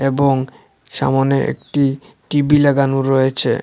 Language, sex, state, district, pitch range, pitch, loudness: Bengali, male, Assam, Hailakandi, 135-140 Hz, 135 Hz, -16 LUFS